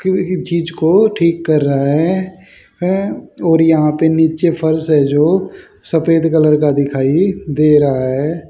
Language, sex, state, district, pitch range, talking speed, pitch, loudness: Hindi, male, Haryana, Jhajjar, 150-175 Hz, 155 wpm, 160 Hz, -14 LUFS